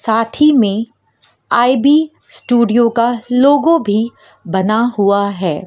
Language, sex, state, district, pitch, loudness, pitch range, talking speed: Hindi, female, Madhya Pradesh, Dhar, 235 Hz, -13 LUFS, 205-255 Hz, 115 wpm